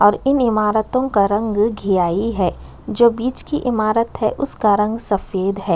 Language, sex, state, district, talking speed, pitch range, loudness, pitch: Hindi, female, Chhattisgarh, Sukma, 165 wpm, 200-240 Hz, -18 LUFS, 215 Hz